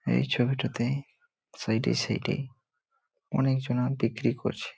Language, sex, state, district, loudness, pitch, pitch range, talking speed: Bengali, male, West Bengal, Malda, -29 LUFS, 130 Hz, 125-140 Hz, 125 wpm